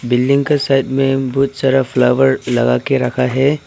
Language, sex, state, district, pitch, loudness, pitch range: Hindi, male, Arunachal Pradesh, Papum Pare, 135 Hz, -15 LUFS, 125-135 Hz